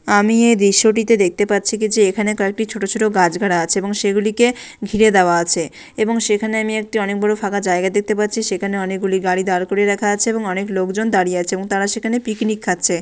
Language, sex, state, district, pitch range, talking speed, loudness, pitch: Bengali, female, West Bengal, Dakshin Dinajpur, 190-220 Hz, 210 wpm, -17 LUFS, 205 Hz